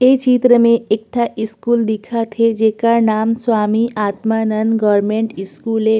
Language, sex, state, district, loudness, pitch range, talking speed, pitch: Chhattisgarhi, female, Chhattisgarh, Korba, -16 LUFS, 215-235 Hz, 150 wpm, 225 Hz